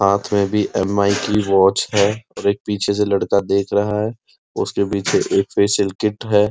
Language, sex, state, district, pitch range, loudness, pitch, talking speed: Hindi, male, Uttar Pradesh, Muzaffarnagar, 100-105 Hz, -18 LUFS, 100 Hz, 195 wpm